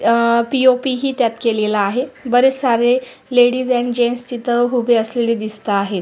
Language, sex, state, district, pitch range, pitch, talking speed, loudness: Marathi, female, Maharashtra, Sindhudurg, 230-255 Hz, 240 Hz, 180 wpm, -16 LUFS